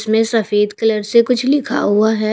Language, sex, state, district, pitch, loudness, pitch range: Hindi, female, Haryana, Rohtak, 220 Hz, -15 LUFS, 215-235 Hz